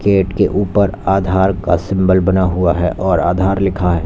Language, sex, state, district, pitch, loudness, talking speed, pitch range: Hindi, male, Uttar Pradesh, Lalitpur, 95 Hz, -15 LUFS, 190 wpm, 90-95 Hz